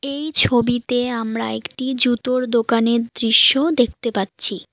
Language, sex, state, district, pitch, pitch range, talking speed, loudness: Bengali, female, West Bengal, Alipurduar, 240 Hz, 230-255 Hz, 115 wpm, -17 LUFS